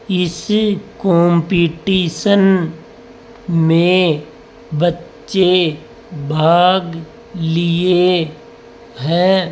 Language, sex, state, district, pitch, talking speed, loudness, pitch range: Hindi, male, Rajasthan, Jaipur, 180 Hz, 45 wpm, -15 LUFS, 165-200 Hz